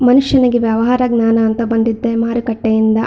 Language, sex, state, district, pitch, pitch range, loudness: Kannada, female, Karnataka, Shimoga, 230 Hz, 225-245 Hz, -14 LUFS